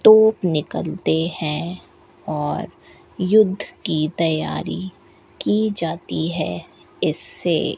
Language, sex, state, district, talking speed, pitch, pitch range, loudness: Hindi, female, Rajasthan, Bikaner, 90 wpm, 175 Hz, 160-210 Hz, -21 LUFS